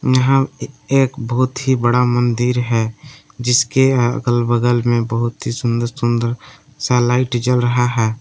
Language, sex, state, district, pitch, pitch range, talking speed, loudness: Hindi, male, Jharkhand, Palamu, 120 Hz, 120-130 Hz, 155 wpm, -17 LUFS